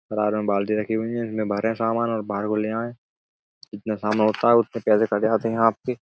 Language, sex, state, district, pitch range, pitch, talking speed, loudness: Hindi, male, Uttar Pradesh, Budaun, 105-115 Hz, 110 Hz, 230 wpm, -23 LUFS